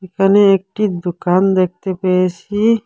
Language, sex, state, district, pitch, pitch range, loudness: Bengali, female, Assam, Hailakandi, 190 Hz, 185-200 Hz, -15 LUFS